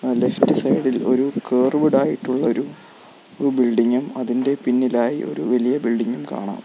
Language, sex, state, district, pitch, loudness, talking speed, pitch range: Malayalam, male, Kerala, Kollam, 125 Hz, -20 LUFS, 135 wpm, 120-130 Hz